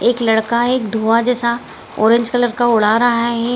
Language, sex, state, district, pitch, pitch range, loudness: Hindi, female, Bihar, Gaya, 235 Hz, 225-240 Hz, -15 LUFS